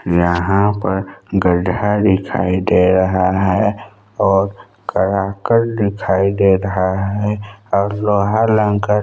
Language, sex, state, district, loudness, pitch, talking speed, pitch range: Hindi, male, Chhattisgarh, Balrampur, -16 LUFS, 100 Hz, 115 wpm, 95-105 Hz